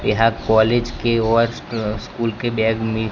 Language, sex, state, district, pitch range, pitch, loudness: Hindi, male, Gujarat, Gandhinagar, 110-115 Hz, 115 Hz, -19 LUFS